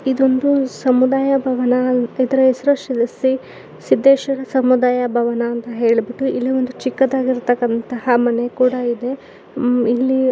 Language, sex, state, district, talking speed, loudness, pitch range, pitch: Kannada, female, Karnataka, Shimoga, 115 wpm, -17 LUFS, 245-265 Hz, 255 Hz